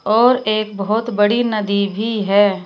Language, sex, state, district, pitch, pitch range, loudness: Hindi, female, Uttar Pradesh, Shamli, 215 Hz, 200-225 Hz, -17 LUFS